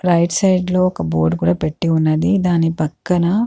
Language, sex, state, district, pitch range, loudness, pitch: Telugu, female, Andhra Pradesh, Chittoor, 155-180 Hz, -17 LUFS, 170 Hz